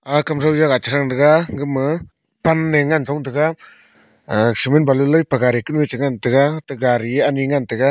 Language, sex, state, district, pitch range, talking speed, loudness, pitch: Wancho, male, Arunachal Pradesh, Longding, 135-155 Hz, 210 wpm, -17 LUFS, 145 Hz